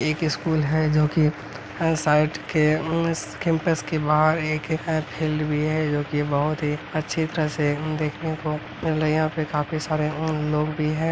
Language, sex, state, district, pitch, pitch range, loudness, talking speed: Hindi, male, Bihar, Araria, 155 Hz, 150-160 Hz, -23 LUFS, 180 wpm